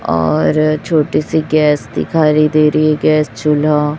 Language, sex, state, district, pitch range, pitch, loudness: Hindi, male, Chhattisgarh, Raipur, 150-155 Hz, 155 Hz, -13 LUFS